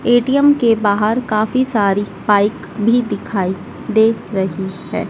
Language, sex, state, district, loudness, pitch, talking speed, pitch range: Hindi, female, Madhya Pradesh, Dhar, -16 LUFS, 215 Hz, 130 wpm, 200-240 Hz